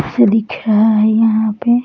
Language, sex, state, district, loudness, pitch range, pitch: Hindi, female, Bihar, Bhagalpur, -13 LUFS, 215-235 Hz, 220 Hz